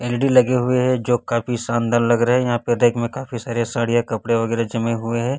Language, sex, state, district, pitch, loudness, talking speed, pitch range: Hindi, male, Chhattisgarh, Raipur, 120 Hz, -19 LUFS, 235 wpm, 115-125 Hz